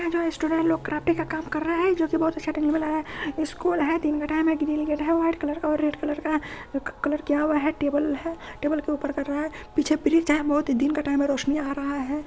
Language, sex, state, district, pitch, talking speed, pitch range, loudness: Hindi, female, Bihar, Saharsa, 305 Hz, 250 wpm, 295-320 Hz, -25 LUFS